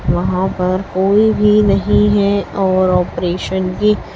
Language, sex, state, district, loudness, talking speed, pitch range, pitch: Hindi, female, Chhattisgarh, Raipur, -14 LUFS, 130 wpm, 185-205 Hz, 190 Hz